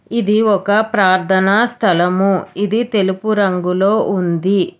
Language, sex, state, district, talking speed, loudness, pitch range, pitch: Telugu, female, Telangana, Hyderabad, 100 wpm, -15 LUFS, 185-215 Hz, 195 Hz